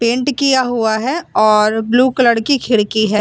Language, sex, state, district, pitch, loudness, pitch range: Hindi, female, Uttar Pradesh, Muzaffarnagar, 235 Hz, -14 LUFS, 220-260 Hz